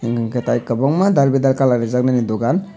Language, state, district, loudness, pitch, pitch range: Kokborok, Tripura, Dhalai, -17 LUFS, 125 Hz, 120-135 Hz